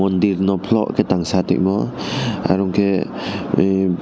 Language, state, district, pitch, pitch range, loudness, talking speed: Kokborok, Tripura, West Tripura, 95 Hz, 95-100 Hz, -19 LUFS, 120 wpm